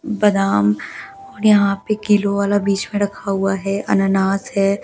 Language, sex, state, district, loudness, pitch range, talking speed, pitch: Hindi, female, Delhi, New Delhi, -18 LUFS, 195-210 Hz, 160 wpm, 200 Hz